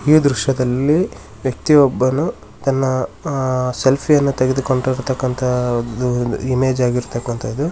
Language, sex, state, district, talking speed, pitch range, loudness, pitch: Kannada, male, Karnataka, Shimoga, 70 wpm, 125-135 Hz, -18 LUFS, 130 Hz